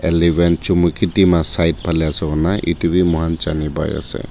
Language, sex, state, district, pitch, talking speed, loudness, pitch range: Nagamese, male, Nagaland, Dimapur, 85 Hz, 155 wpm, -17 LUFS, 80-85 Hz